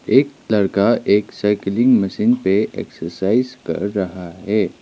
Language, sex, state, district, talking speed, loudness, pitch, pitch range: Hindi, male, Sikkim, Gangtok, 125 wpm, -18 LUFS, 100 Hz, 95-120 Hz